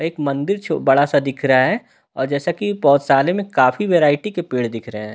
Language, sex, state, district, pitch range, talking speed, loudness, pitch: Hindi, male, Delhi, New Delhi, 130-175 Hz, 245 wpm, -18 LUFS, 140 Hz